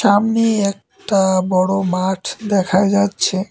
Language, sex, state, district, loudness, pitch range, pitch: Bengali, male, West Bengal, Cooch Behar, -17 LUFS, 190-205 Hz, 195 Hz